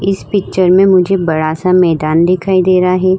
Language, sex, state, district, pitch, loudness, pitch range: Hindi, female, Uttar Pradesh, Hamirpur, 185 Hz, -11 LUFS, 175-190 Hz